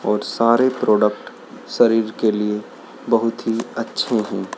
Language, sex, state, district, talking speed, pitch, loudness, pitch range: Hindi, male, Madhya Pradesh, Dhar, 130 wpm, 115 Hz, -19 LUFS, 105-115 Hz